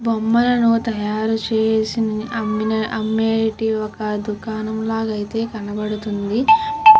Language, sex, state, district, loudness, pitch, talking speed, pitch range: Telugu, female, Andhra Pradesh, Krishna, -19 LUFS, 220 Hz, 70 wpm, 215-225 Hz